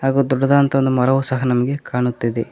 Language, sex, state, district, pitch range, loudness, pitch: Kannada, male, Karnataka, Koppal, 125-135 Hz, -17 LUFS, 130 Hz